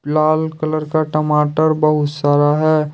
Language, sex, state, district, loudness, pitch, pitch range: Hindi, male, Jharkhand, Deoghar, -16 LUFS, 155 Hz, 150-155 Hz